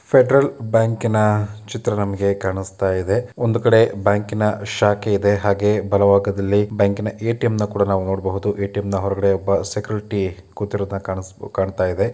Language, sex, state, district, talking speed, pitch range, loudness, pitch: Kannada, male, Karnataka, Dakshina Kannada, 140 wpm, 100-105 Hz, -19 LUFS, 100 Hz